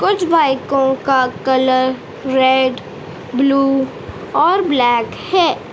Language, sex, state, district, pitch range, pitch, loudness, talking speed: Hindi, female, Madhya Pradesh, Dhar, 260-280 Hz, 265 Hz, -15 LUFS, 95 wpm